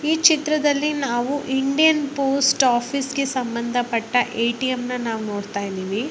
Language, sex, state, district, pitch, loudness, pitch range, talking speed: Kannada, female, Karnataka, Bellary, 260 Hz, -21 LUFS, 235-285 Hz, 140 wpm